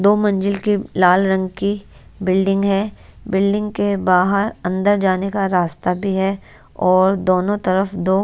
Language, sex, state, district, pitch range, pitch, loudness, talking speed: Hindi, female, Odisha, Nuapada, 185-200 Hz, 195 Hz, -18 LUFS, 155 wpm